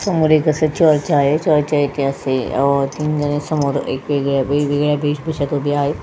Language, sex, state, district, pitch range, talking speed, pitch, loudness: Marathi, female, Goa, North and South Goa, 140-150 Hz, 130 wpm, 145 Hz, -17 LUFS